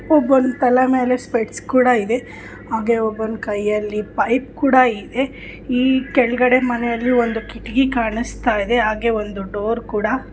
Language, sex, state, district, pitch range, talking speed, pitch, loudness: Kannada, female, Karnataka, Bijapur, 220-255 Hz, 130 wpm, 240 Hz, -18 LUFS